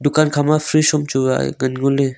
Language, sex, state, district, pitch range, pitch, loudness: Wancho, male, Arunachal Pradesh, Longding, 130-155 Hz, 145 Hz, -17 LUFS